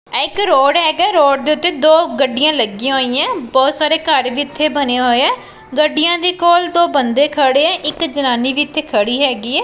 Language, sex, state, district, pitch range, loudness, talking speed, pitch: Punjabi, female, Punjab, Pathankot, 265-320 Hz, -13 LUFS, 195 wpm, 295 Hz